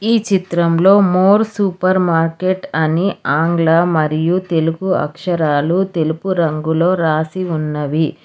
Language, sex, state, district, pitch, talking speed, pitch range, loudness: Telugu, female, Telangana, Hyderabad, 170 Hz, 100 wpm, 160-185 Hz, -15 LUFS